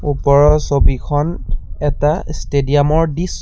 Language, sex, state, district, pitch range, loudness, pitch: Assamese, male, Assam, Sonitpur, 145-155 Hz, -15 LUFS, 145 Hz